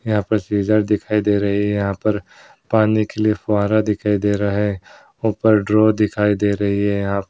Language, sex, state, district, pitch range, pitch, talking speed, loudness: Hindi, male, Andhra Pradesh, Krishna, 100-110 Hz, 105 Hz, 180 wpm, -18 LUFS